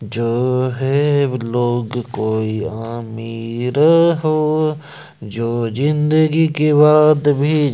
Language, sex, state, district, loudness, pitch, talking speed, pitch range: Hindi, male, Madhya Pradesh, Bhopal, -16 LUFS, 130 Hz, 85 wpm, 115-150 Hz